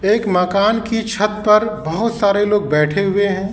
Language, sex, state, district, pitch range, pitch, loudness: Hindi, male, Uttar Pradesh, Lalitpur, 195-215 Hz, 205 Hz, -16 LUFS